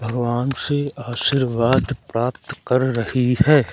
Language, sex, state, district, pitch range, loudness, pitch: Hindi, male, Madhya Pradesh, Umaria, 120-135 Hz, -20 LUFS, 125 Hz